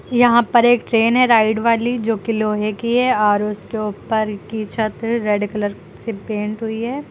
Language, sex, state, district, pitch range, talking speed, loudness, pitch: Hindi, female, Uttar Pradesh, Lucknow, 210-235 Hz, 195 wpm, -18 LUFS, 225 Hz